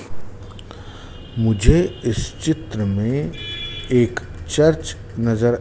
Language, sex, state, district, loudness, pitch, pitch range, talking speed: Hindi, male, Madhya Pradesh, Dhar, -20 LUFS, 105 Hz, 95-120 Hz, 75 wpm